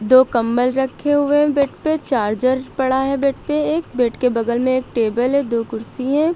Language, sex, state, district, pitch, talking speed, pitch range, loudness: Hindi, female, Uttar Pradesh, Lucknow, 260 Hz, 205 wpm, 240-280 Hz, -18 LUFS